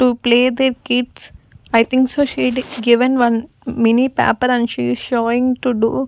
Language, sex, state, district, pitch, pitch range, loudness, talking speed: English, female, Punjab, Fazilka, 250 Hz, 235-255 Hz, -16 LUFS, 170 wpm